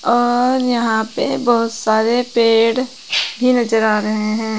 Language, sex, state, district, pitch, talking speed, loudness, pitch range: Hindi, female, Uttar Pradesh, Saharanpur, 230 Hz, 145 wpm, -16 LUFS, 220-245 Hz